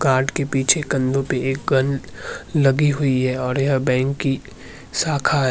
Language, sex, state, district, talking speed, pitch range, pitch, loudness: Hindi, male, Uttarakhand, Tehri Garhwal, 175 wpm, 130-140 Hz, 135 Hz, -20 LUFS